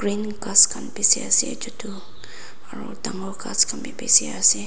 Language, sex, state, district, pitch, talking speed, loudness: Nagamese, female, Nagaland, Dimapur, 200 Hz, 180 wpm, -18 LUFS